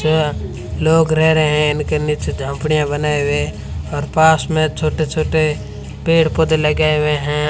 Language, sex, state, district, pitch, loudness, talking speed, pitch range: Hindi, female, Rajasthan, Bikaner, 155 Hz, -16 LUFS, 170 wpm, 150-155 Hz